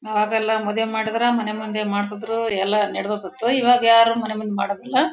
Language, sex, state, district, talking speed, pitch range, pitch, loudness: Kannada, female, Karnataka, Bellary, 165 wpm, 210-230 Hz, 220 Hz, -20 LUFS